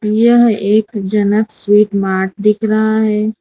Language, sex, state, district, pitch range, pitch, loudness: Hindi, female, Gujarat, Valsad, 205-220 Hz, 210 Hz, -13 LUFS